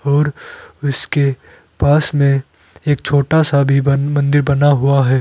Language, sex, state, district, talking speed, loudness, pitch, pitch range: Hindi, male, Uttar Pradesh, Saharanpur, 150 wpm, -15 LUFS, 140 Hz, 140-145 Hz